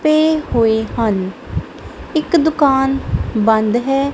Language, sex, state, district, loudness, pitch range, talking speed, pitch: Punjabi, female, Punjab, Kapurthala, -16 LUFS, 220-305 Hz, 100 wpm, 270 Hz